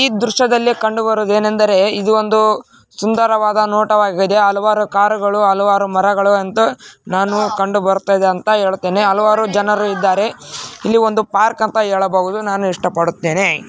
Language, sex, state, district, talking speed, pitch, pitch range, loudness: Kannada, male, Karnataka, Raichur, 130 wpm, 205 Hz, 195-215 Hz, -14 LUFS